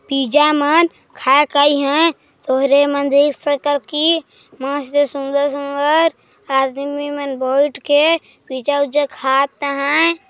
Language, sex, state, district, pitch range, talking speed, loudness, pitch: Hindi, male, Chhattisgarh, Jashpur, 275-295 Hz, 120 wpm, -16 LUFS, 285 Hz